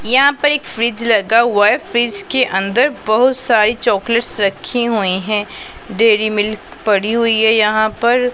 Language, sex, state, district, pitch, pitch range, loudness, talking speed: Hindi, female, Punjab, Pathankot, 230 Hz, 215-245 Hz, -14 LUFS, 175 wpm